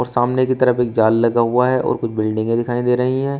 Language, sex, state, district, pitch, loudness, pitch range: Hindi, male, Uttar Pradesh, Shamli, 120 Hz, -17 LUFS, 115-125 Hz